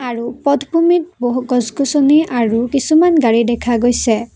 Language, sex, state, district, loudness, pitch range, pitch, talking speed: Assamese, female, Assam, Kamrup Metropolitan, -14 LUFS, 235-290 Hz, 250 Hz, 140 wpm